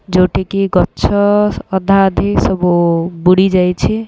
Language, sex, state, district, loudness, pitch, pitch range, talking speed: Odia, female, Odisha, Khordha, -13 LUFS, 185 Hz, 175-195 Hz, 90 wpm